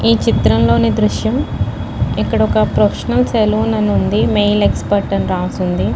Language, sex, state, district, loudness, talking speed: Telugu, female, Telangana, Nalgonda, -15 LUFS, 140 wpm